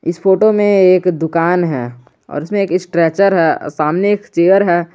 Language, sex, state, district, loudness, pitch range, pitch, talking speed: Hindi, male, Jharkhand, Garhwa, -13 LUFS, 165-195 Hz, 175 Hz, 180 wpm